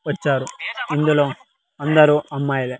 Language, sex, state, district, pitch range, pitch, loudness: Telugu, male, Andhra Pradesh, Sri Satya Sai, 140-150 Hz, 145 Hz, -19 LUFS